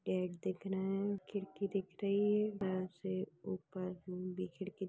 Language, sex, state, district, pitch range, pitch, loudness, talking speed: Hindi, male, Chhattisgarh, Raigarh, 185-200 Hz, 190 Hz, -39 LUFS, 160 wpm